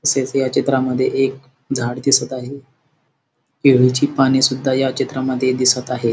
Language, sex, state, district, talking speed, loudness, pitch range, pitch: Marathi, male, Maharashtra, Sindhudurg, 135 wpm, -17 LUFS, 130-135 Hz, 130 Hz